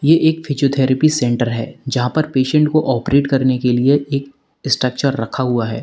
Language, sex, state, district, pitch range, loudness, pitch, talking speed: Hindi, male, Uttar Pradesh, Lalitpur, 125-145 Hz, -16 LUFS, 135 Hz, 185 wpm